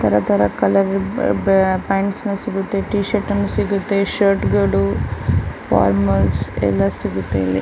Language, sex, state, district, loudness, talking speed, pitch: Kannada, female, Karnataka, Chamarajanagar, -18 LUFS, 120 wpm, 105 Hz